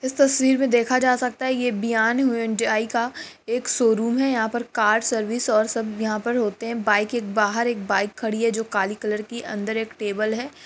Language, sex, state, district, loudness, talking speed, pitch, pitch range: Hindi, female, Bihar, Lakhisarai, -22 LUFS, 220 wpm, 230 Hz, 215-245 Hz